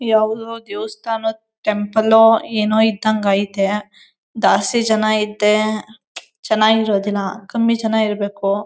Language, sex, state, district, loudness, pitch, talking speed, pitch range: Kannada, female, Karnataka, Mysore, -17 LUFS, 215 Hz, 95 wpm, 210-220 Hz